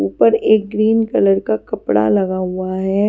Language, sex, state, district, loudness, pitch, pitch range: Hindi, female, Maharashtra, Washim, -16 LUFS, 190 Hz, 145-215 Hz